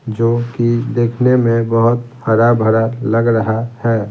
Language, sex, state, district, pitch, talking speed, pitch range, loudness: Hindi, male, Bihar, Patna, 115 Hz, 145 wpm, 115-120 Hz, -15 LUFS